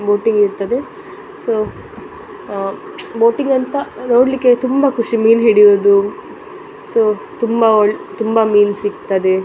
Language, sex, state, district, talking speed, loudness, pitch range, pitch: Kannada, female, Karnataka, Dakshina Kannada, 95 wpm, -14 LUFS, 205-260 Hz, 225 Hz